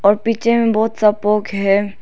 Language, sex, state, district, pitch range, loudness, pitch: Hindi, female, Arunachal Pradesh, Lower Dibang Valley, 205-225 Hz, -16 LUFS, 210 Hz